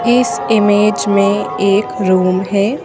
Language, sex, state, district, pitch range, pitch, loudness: Hindi, female, Madhya Pradesh, Bhopal, 195-220 Hz, 200 Hz, -13 LUFS